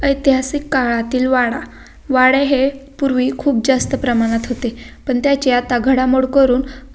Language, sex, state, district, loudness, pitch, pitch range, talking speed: Marathi, female, Maharashtra, Pune, -16 LUFS, 260 Hz, 250-275 Hz, 130 wpm